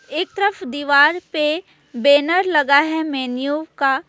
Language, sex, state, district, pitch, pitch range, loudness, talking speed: Hindi, female, West Bengal, Alipurduar, 300 Hz, 285-335 Hz, -17 LUFS, 130 wpm